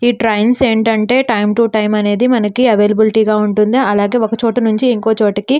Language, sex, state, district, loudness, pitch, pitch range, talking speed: Telugu, female, Andhra Pradesh, Srikakulam, -13 LUFS, 220 Hz, 210-240 Hz, 190 wpm